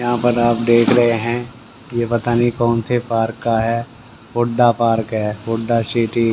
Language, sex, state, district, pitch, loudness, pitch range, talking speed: Hindi, male, Haryana, Rohtak, 120 Hz, -17 LUFS, 115-120 Hz, 190 wpm